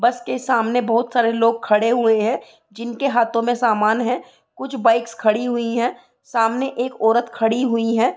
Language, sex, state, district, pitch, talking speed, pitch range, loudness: Hindi, female, Uttar Pradesh, Gorakhpur, 235 Hz, 185 wpm, 230-245 Hz, -19 LUFS